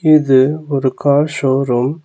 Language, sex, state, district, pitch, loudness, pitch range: Tamil, male, Tamil Nadu, Nilgiris, 140 Hz, -14 LUFS, 130-150 Hz